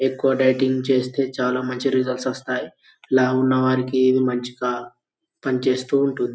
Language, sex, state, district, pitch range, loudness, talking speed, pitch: Telugu, male, Telangana, Karimnagar, 125-130 Hz, -21 LUFS, 125 wpm, 130 Hz